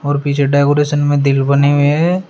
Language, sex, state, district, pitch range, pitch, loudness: Hindi, male, Uttar Pradesh, Shamli, 140-145 Hz, 145 Hz, -13 LUFS